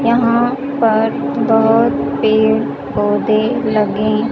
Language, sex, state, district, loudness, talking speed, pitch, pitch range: Hindi, female, Haryana, Charkhi Dadri, -15 LUFS, 85 wpm, 225 Hz, 155-235 Hz